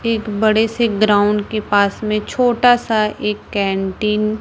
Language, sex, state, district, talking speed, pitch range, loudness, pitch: Hindi, female, Chhattisgarh, Raipur, 165 wpm, 205-225 Hz, -16 LUFS, 215 Hz